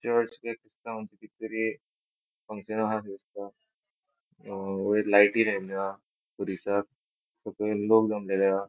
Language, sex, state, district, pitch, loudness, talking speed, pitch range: Konkani, male, Goa, North and South Goa, 105 Hz, -28 LUFS, 125 wpm, 100-115 Hz